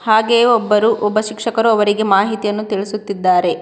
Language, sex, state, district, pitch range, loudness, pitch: Kannada, female, Karnataka, Koppal, 205-225 Hz, -15 LUFS, 215 Hz